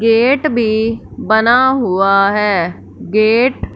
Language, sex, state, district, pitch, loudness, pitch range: Hindi, female, Punjab, Fazilka, 225 Hz, -13 LUFS, 210-245 Hz